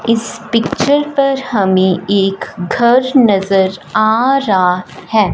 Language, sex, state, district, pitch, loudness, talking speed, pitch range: Hindi, female, Punjab, Fazilka, 215 Hz, -13 LUFS, 110 wpm, 190-250 Hz